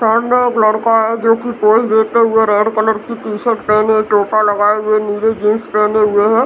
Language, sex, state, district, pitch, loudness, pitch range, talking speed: Hindi, female, Bihar, Muzaffarpur, 220 Hz, -13 LUFS, 210-225 Hz, 215 wpm